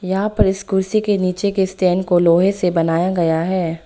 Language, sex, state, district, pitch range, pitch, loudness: Hindi, female, Arunachal Pradesh, Lower Dibang Valley, 175-195 Hz, 185 Hz, -17 LUFS